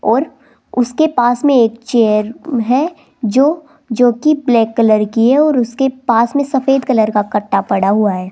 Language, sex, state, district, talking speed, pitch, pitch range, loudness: Hindi, female, Rajasthan, Jaipur, 175 wpm, 245 Hz, 220-270 Hz, -14 LUFS